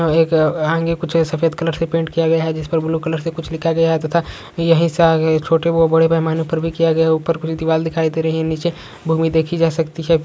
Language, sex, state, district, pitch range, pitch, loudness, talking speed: Hindi, male, Rajasthan, Nagaur, 160-165 Hz, 165 Hz, -17 LUFS, 250 wpm